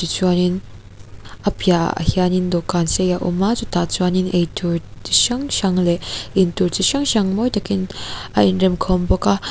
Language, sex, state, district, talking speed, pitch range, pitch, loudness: Mizo, female, Mizoram, Aizawl, 185 wpm, 170-190 Hz, 180 Hz, -18 LUFS